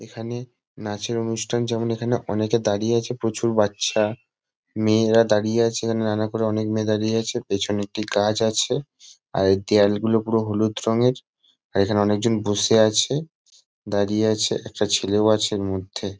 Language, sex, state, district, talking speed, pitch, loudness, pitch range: Bengali, male, West Bengal, Kolkata, 150 wpm, 110 Hz, -22 LUFS, 105-115 Hz